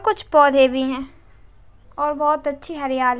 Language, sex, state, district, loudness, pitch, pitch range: Hindi, female, Uttar Pradesh, Ghazipur, -19 LUFS, 285 Hz, 265-300 Hz